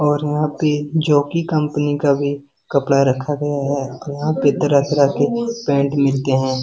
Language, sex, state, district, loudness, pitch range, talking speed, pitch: Hindi, male, Bihar, Jamui, -18 LUFS, 140-150 Hz, 155 wpm, 145 Hz